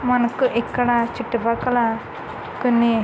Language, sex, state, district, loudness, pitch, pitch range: Telugu, female, Andhra Pradesh, Krishna, -20 LUFS, 240 Hz, 235-245 Hz